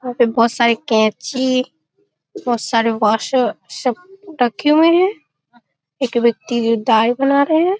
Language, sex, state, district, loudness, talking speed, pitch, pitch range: Hindi, female, Bihar, Muzaffarpur, -16 LUFS, 140 wpm, 245 Hz, 230-280 Hz